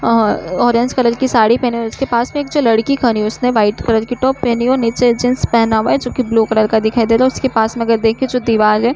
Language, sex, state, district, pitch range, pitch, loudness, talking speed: Hindi, female, Uttar Pradesh, Budaun, 225-250 Hz, 235 Hz, -14 LUFS, 310 wpm